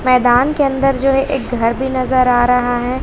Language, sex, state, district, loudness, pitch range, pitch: Hindi, female, Bihar, West Champaran, -14 LUFS, 245-270 Hz, 255 Hz